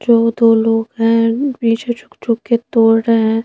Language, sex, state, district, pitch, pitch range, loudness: Hindi, female, Madhya Pradesh, Bhopal, 230 Hz, 225-235 Hz, -14 LUFS